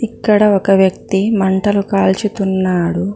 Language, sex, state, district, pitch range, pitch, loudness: Telugu, female, Telangana, Mahabubabad, 190-210 Hz, 195 Hz, -14 LUFS